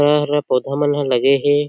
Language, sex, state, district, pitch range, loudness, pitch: Chhattisgarhi, male, Chhattisgarh, Sarguja, 140-145 Hz, -17 LUFS, 145 Hz